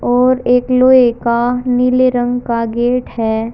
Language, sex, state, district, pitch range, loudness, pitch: Hindi, male, Haryana, Charkhi Dadri, 235-250 Hz, -13 LUFS, 245 Hz